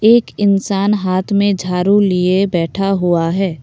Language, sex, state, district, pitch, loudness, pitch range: Hindi, female, Assam, Kamrup Metropolitan, 195 Hz, -15 LUFS, 180-200 Hz